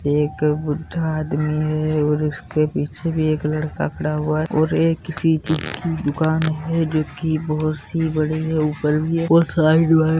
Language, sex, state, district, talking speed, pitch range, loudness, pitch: Hindi, female, Uttar Pradesh, Muzaffarnagar, 195 wpm, 150-160 Hz, -20 LUFS, 155 Hz